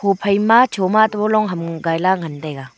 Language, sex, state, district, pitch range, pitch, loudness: Wancho, female, Arunachal Pradesh, Longding, 165-215 Hz, 190 Hz, -17 LUFS